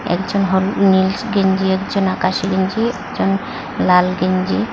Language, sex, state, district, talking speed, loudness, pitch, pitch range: Bengali, female, Assam, Hailakandi, 125 wpm, -17 LUFS, 190 Hz, 190-200 Hz